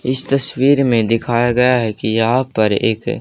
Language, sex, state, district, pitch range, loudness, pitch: Hindi, male, Haryana, Jhajjar, 115-130 Hz, -15 LUFS, 120 Hz